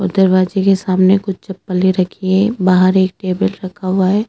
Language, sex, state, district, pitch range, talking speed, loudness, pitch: Hindi, female, Chhattisgarh, Sukma, 185-195 Hz, 180 wpm, -14 LUFS, 190 Hz